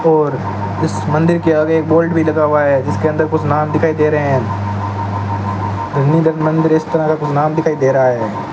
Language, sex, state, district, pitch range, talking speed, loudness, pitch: Hindi, male, Rajasthan, Bikaner, 105-155 Hz, 195 wpm, -15 LUFS, 150 Hz